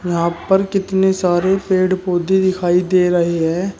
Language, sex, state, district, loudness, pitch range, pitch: Hindi, male, Uttar Pradesh, Shamli, -16 LUFS, 175-190 Hz, 185 Hz